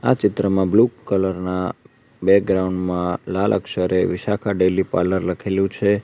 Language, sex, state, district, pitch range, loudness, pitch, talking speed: Gujarati, male, Gujarat, Valsad, 90-105 Hz, -20 LUFS, 95 Hz, 140 wpm